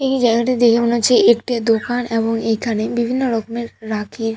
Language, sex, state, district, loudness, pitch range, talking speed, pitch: Bengali, female, West Bengal, Purulia, -17 LUFS, 225-240 Hz, 165 wpm, 230 Hz